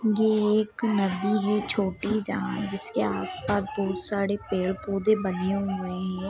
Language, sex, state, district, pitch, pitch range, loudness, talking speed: Hindi, female, Bihar, Sitamarhi, 200 Hz, 195-210 Hz, -26 LUFS, 150 wpm